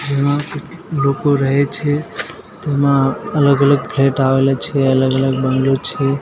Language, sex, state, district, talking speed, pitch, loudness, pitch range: Gujarati, male, Gujarat, Gandhinagar, 125 wpm, 140 Hz, -15 LUFS, 135-145 Hz